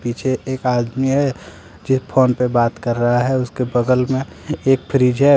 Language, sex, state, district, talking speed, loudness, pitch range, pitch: Hindi, male, Jharkhand, Deoghar, 200 wpm, -18 LUFS, 120-130 Hz, 125 Hz